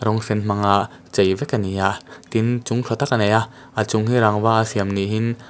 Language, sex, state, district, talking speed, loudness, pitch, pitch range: Mizo, male, Mizoram, Aizawl, 240 wpm, -20 LUFS, 110 Hz, 100-115 Hz